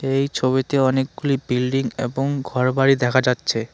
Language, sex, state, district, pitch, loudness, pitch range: Bengali, male, West Bengal, Alipurduar, 130 Hz, -20 LUFS, 125-135 Hz